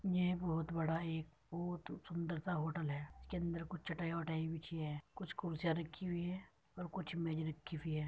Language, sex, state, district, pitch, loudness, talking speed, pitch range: Hindi, male, Uttar Pradesh, Muzaffarnagar, 165 Hz, -42 LUFS, 215 wpm, 160-175 Hz